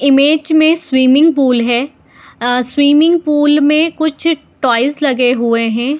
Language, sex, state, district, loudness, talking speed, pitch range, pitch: Hindi, female, Jharkhand, Jamtara, -12 LUFS, 130 wpm, 250-310 Hz, 285 Hz